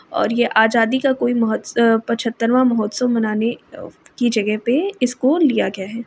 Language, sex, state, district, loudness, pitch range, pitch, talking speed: Hindi, female, Uttar Pradesh, Varanasi, -18 LUFS, 225-250 Hz, 235 Hz, 180 wpm